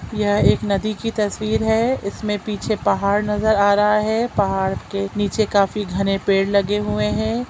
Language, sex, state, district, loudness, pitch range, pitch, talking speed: Hindi, female, Chhattisgarh, Sukma, -19 LUFS, 200-215 Hz, 205 Hz, 185 wpm